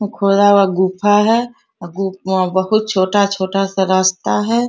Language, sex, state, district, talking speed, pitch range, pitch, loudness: Hindi, female, Bihar, Bhagalpur, 155 wpm, 190-210 Hz, 195 Hz, -15 LUFS